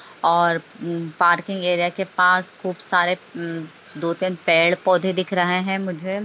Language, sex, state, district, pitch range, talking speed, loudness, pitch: Hindi, female, Bihar, Jamui, 170-185 Hz, 155 wpm, -21 LUFS, 180 Hz